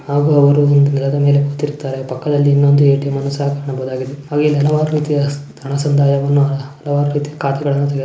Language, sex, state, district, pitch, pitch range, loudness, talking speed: Kannada, female, Karnataka, Shimoga, 140 Hz, 140-145 Hz, -15 LUFS, 170 wpm